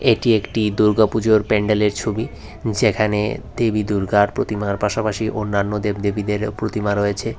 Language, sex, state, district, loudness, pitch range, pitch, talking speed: Bengali, male, Tripura, West Tripura, -19 LUFS, 105-110 Hz, 105 Hz, 130 wpm